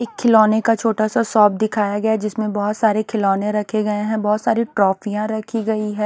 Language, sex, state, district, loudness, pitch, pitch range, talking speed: Hindi, male, Odisha, Nuapada, -18 LUFS, 215 Hz, 210-220 Hz, 210 wpm